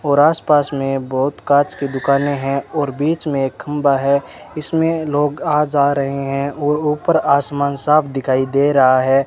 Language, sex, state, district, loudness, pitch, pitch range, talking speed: Hindi, male, Rajasthan, Bikaner, -17 LUFS, 140 Hz, 135-150 Hz, 180 wpm